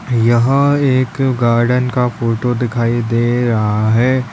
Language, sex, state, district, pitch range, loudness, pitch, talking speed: Hindi, male, Uttar Pradesh, Lalitpur, 115-130 Hz, -14 LUFS, 120 Hz, 125 wpm